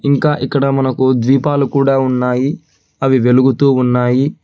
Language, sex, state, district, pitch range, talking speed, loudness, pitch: Telugu, male, Telangana, Hyderabad, 130-140 Hz, 120 wpm, -13 LUFS, 135 Hz